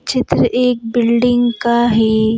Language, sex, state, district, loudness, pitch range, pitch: Hindi, female, Madhya Pradesh, Bhopal, -14 LUFS, 230-245 Hz, 235 Hz